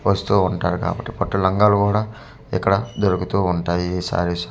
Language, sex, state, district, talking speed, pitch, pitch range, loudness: Telugu, male, Andhra Pradesh, Manyam, 175 wpm, 95 Hz, 90-105 Hz, -20 LUFS